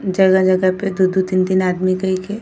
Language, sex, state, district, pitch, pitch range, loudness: Bhojpuri, female, Uttar Pradesh, Gorakhpur, 185 Hz, 185-190 Hz, -16 LUFS